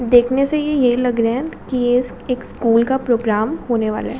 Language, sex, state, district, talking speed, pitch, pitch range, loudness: Hindi, female, Chhattisgarh, Raipur, 230 wpm, 245 Hz, 235-260 Hz, -18 LUFS